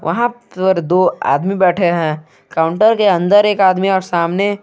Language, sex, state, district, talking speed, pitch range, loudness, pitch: Hindi, male, Jharkhand, Garhwa, 140 wpm, 170-205 Hz, -14 LUFS, 185 Hz